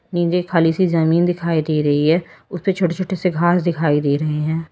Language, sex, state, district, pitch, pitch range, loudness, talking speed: Hindi, female, Uttar Pradesh, Lalitpur, 170 Hz, 155-180 Hz, -18 LUFS, 215 wpm